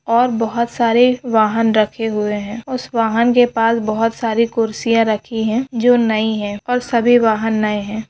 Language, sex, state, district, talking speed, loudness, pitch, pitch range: Hindi, female, West Bengal, Jalpaiguri, 180 wpm, -16 LUFS, 225 Hz, 220-235 Hz